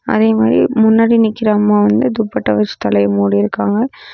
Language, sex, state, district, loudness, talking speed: Tamil, female, Tamil Nadu, Namakkal, -13 LUFS, 145 wpm